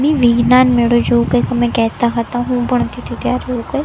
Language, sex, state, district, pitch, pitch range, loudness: Gujarati, female, Gujarat, Gandhinagar, 240 Hz, 235-250 Hz, -14 LUFS